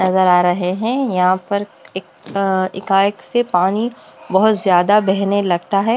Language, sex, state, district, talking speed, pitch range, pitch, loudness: Hindi, female, Bihar, West Champaran, 170 wpm, 185-210 Hz, 195 Hz, -16 LUFS